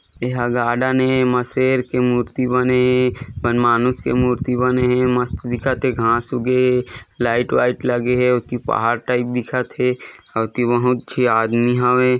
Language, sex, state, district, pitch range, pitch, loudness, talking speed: Chhattisgarhi, male, Chhattisgarh, Korba, 120-125 Hz, 125 Hz, -18 LUFS, 175 wpm